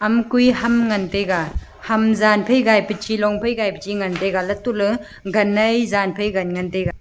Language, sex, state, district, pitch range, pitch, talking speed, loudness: Wancho, female, Arunachal Pradesh, Longding, 195-220 Hz, 210 Hz, 190 wpm, -19 LUFS